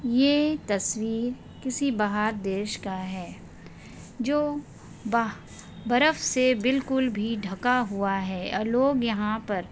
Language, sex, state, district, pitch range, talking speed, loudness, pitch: Hindi, female, Maharashtra, Solapur, 205-260 Hz, 125 wpm, -26 LUFS, 230 Hz